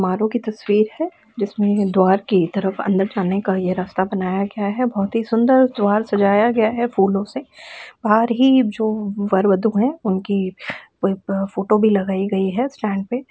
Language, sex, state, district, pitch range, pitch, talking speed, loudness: Hindi, female, Uttar Pradesh, Jalaun, 195-230 Hz, 205 Hz, 180 wpm, -19 LUFS